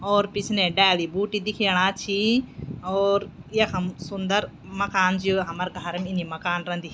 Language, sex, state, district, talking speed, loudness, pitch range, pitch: Garhwali, female, Uttarakhand, Tehri Garhwal, 145 wpm, -24 LUFS, 180-200 Hz, 190 Hz